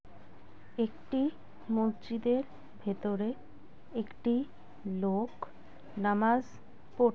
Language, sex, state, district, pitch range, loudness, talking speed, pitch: Bengali, female, West Bengal, Kolkata, 195-240 Hz, -33 LUFS, 60 wpm, 220 Hz